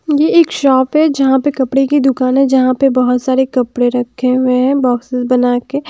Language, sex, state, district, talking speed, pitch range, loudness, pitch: Hindi, female, Bihar, Katihar, 215 wpm, 250-275 Hz, -13 LUFS, 260 Hz